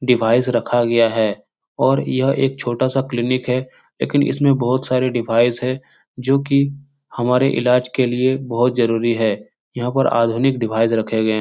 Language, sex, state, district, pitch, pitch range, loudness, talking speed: Hindi, male, Bihar, Supaul, 125 Hz, 115-130 Hz, -18 LUFS, 185 wpm